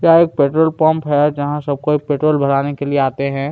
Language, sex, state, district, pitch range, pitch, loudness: Hindi, male, Chhattisgarh, Kabirdham, 140-155 Hz, 145 Hz, -16 LUFS